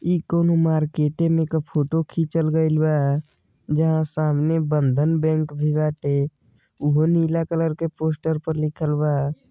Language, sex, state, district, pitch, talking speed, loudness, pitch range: Bhojpuri, male, Uttar Pradesh, Deoria, 155 Hz, 145 wpm, -22 LUFS, 150-160 Hz